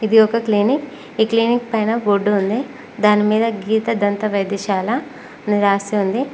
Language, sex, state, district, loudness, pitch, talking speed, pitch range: Telugu, female, Telangana, Mahabubabad, -18 LUFS, 220 Hz, 150 wpm, 205-235 Hz